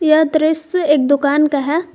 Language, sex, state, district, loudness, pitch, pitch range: Hindi, female, Jharkhand, Garhwa, -15 LUFS, 310 Hz, 290-315 Hz